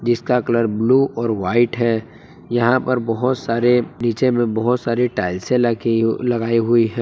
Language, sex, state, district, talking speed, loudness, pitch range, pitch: Hindi, male, Jharkhand, Palamu, 170 wpm, -18 LUFS, 115-125 Hz, 120 Hz